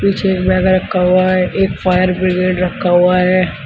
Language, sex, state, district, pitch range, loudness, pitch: Hindi, male, Uttar Pradesh, Shamli, 180-185 Hz, -13 LUFS, 185 Hz